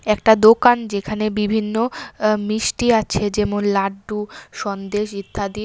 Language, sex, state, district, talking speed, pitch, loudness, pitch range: Bengali, female, Tripura, West Tripura, 115 wpm, 210 Hz, -19 LUFS, 205-220 Hz